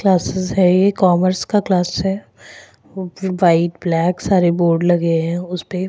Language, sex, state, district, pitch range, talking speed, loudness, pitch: Hindi, female, Goa, North and South Goa, 175-190 Hz, 155 wpm, -16 LUFS, 180 Hz